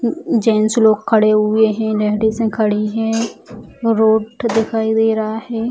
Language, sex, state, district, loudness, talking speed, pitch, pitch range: Hindi, female, Bihar, Sitamarhi, -16 LUFS, 135 wpm, 220 Hz, 220-225 Hz